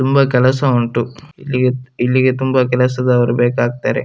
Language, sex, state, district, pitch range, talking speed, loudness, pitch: Kannada, male, Karnataka, Dakshina Kannada, 125-130 Hz, 120 wpm, -15 LUFS, 125 Hz